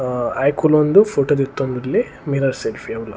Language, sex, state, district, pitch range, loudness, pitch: Tulu, male, Karnataka, Dakshina Kannada, 125-150 Hz, -18 LUFS, 135 Hz